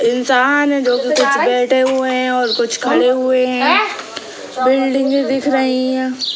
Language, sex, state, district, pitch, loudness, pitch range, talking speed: Hindi, female, Bihar, Sitamarhi, 255 Hz, -14 LUFS, 250-265 Hz, 115 wpm